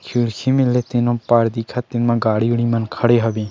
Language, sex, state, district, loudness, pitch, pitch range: Chhattisgarhi, male, Chhattisgarh, Sarguja, -18 LUFS, 120 Hz, 115-120 Hz